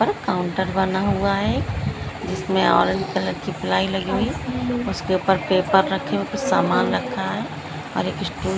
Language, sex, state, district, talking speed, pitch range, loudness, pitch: Hindi, female, Bihar, Purnia, 195 wpm, 120-190 Hz, -22 LUFS, 185 Hz